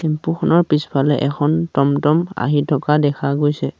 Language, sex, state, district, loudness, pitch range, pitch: Assamese, male, Assam, Sonitpur, -17 LUFS, 140-155 Hz, 150 Hz